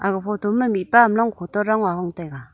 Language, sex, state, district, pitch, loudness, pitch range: Wancho, female, Arunachal Pradesh, Longding, 205 Hz, -20 LUFS, 180-220 Hz